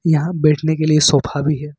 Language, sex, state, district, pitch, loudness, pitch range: Hindi, male, Jharkhand, Ranchi, 150 Hz, -16 LUFS, 150-160 Hz